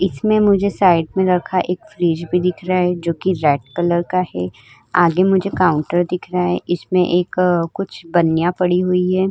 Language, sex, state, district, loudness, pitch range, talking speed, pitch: Hindi, female, Uttar Pradesh, Hamirpur, -17 LUFS, 170-185 Hz, 195 wpm, 180 Hz